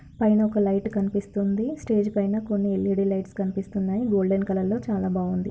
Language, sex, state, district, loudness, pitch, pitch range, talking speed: Telugu, female, Andhra Pradesh, Krishna, -25 LUFS, 200 Hz, 195-210 Hz, 165 wpm